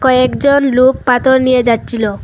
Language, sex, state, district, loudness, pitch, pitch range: Bengali, female, Assam, Hailakandi, -11 LUFS, 255 Hz, 245-260 Hz